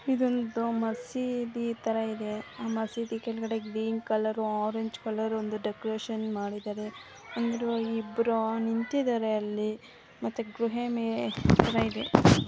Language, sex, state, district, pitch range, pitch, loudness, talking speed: Kannada, female, Karnataka, Mysore, 220-235 Hz, 225 Hz, -30 LUFS, 105 wpm